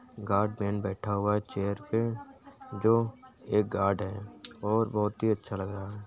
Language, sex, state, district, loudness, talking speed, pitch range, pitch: Hindi, male, Uttar Pradesh, Jyotiba Phule Nagar, -30 LUFS, 170 wpm, 100-115 Hz, 105 Hz